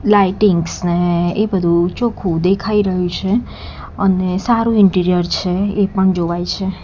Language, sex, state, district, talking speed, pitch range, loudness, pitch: Gujarati, female, Gujarat, Gandhinagar, 140 wpm, 175-205 Hz, -16 LUFS, 190 Hz